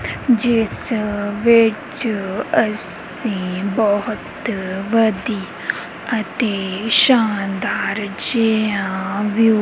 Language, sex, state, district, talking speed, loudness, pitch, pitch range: Punjabi, female, Punjab, Kapurthala, 60 wpm, -19 LUFS, 215 Hz, 200-225 Hz